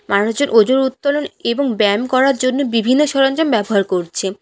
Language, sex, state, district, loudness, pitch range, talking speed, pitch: Bengali, female, West Bengal, Alipurduar, -16 LUFS, 210-275 Hz, 150 wpm, 255 Hz